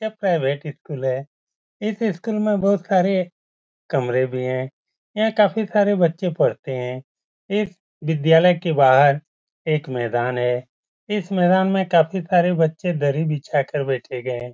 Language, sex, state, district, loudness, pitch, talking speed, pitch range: Hindi, male, Uttar Pradesh, Etah, -20 LUFS, 160 Hz, 155 wpm, 130-190 Hz